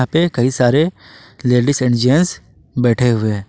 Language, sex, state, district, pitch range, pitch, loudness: Hindi, male, Jharkhand, Ranchi, 120-145 Hz, 125 Hz, -15 LUFS